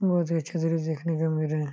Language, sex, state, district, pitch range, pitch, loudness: Hindi, male, Jharkhand, Jamtara, 155-165 Hz, 160 Hz, -27 LUFS